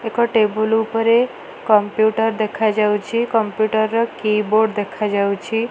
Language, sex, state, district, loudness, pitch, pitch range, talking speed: Odia, female, Odisha, Malkangiri, -18 LUFS, 220 Hz, 210-225 Hz, 85 wpm